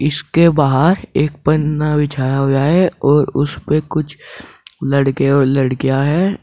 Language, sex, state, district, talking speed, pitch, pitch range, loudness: Hindi, male, Uttar Pradesh, Saharanpur, 140 wpm, 145 Hz, 140-155 Hz, -15 LUFS